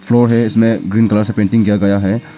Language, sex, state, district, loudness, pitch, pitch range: Hindi, male, Arunachal Pradesh, Papum Pare, -13 LUFS, 110 Hz, 105-115 Hz